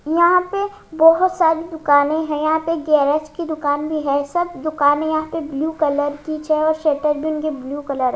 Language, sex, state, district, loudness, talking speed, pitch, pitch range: Hindi, female, Haryana, Jhajjar, -18 LUFS, 200 wpm, 310 Hz, 290-325 Hz